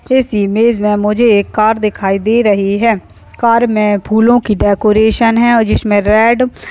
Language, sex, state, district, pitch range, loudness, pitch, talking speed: Hindi, female, West Bengal, Dakshin Dinajpur, 205-230 Hz, -11 LUFS, 220 Hz, 180 wpm